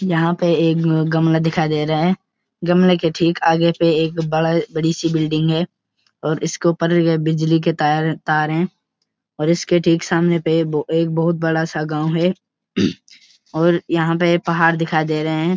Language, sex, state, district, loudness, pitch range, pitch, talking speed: Hindi, male, Uttarakhand, Uttarkashi, -18 LUFS, 160-170 Hz, 165 Hz, 165 wpm